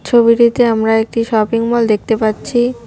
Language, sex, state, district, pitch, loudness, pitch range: Bengali, female, West Bengal, Cooch Behar, 230 Hz, -13 LUFS, 220-235 Hz